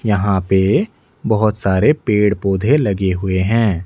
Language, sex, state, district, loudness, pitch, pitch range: Hindi, male, Odisha, Nuapada, -16 LUFS, 100 Hz, 95-110 Hz